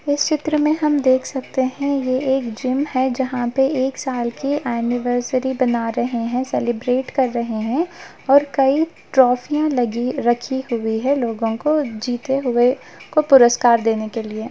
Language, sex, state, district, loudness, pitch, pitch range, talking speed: Hindi, female, Bihar, Gaya, -19 LUFS, 255 Hz, 240-275 Hz, 165 wpm